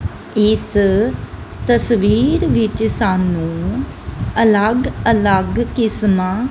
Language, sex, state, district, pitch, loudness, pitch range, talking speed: Punjabi, female, Punjab, Kapurthala, 205 Hz, -16 LUFS, 170-225 Hz, 65 wpm